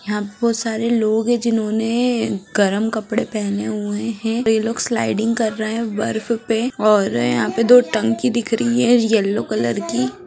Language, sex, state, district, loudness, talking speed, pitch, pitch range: Hindi, female, Bihar, Begusarai, -18 LUFS, 180 wpm, 225 Hz, 210-230 Hz